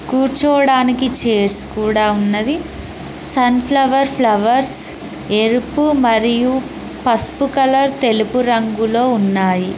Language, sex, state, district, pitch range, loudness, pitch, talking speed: Telugu, female, Telangana, Mahabubabad, 215-270 Hz, -14 LUFS, 245 Hz, 80 wpm